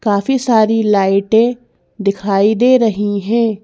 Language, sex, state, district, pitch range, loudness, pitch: Hindi, female, Madhya Pradesh, Bhopal, 200-235 Hz, -14 LUFS, 220 Hz